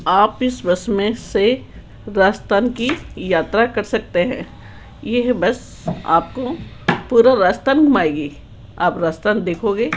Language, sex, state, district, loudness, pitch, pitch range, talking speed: Hindi, female, Rajasthan, Jaipur, -18 LUFS, 210 Hz, 175-245 Hz, 120 wpm